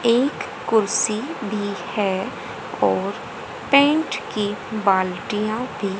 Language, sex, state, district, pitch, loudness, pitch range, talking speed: Hindi, female, Haryana, Jhajjar, 215 Hz, -22 LUFS, 205-245 Hz, 90 wpm